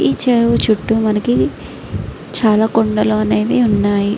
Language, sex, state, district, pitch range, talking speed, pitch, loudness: Telugu, female, Andhra Pradesh, Srikakulam, 210-225 Hz, 115 wpm, 215 Hz, -15 LUFS